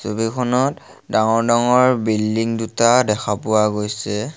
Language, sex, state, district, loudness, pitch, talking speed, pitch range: Assamese, male, Assam, Sonitpur, -18 LUFS, 115 Hz, 110 wpm, 105-120 Hz